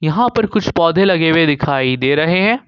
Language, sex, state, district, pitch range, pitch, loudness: Hindi, male, Jharkhand, Ranchi, 145-205 Hz, 165 Hz, -14 LUFS